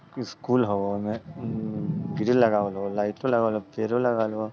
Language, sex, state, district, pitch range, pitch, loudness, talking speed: Bajjika, male, Bihar, Vaishali, 105-125 Hz, 115 Hz, -26 LUFS, 160 wpm